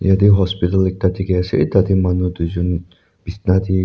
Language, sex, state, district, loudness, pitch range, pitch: Nagamese, male, Nagaland, Dimapur, -17 LUFS, 90-95 Hz, 95 Hz